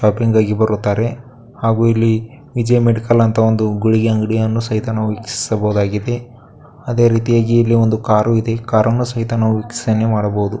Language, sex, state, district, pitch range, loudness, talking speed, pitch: Kannada, male, Karnataka, Dakshina Kannada, 110-115 Hz, -16 LUFS, 135 wpm, 115 Hz